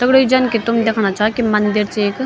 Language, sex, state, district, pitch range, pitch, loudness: Garhwali, female, Uttarakhand, Tehri Garhwal, 210-245 Hz, 225 Hz, -15 LUFS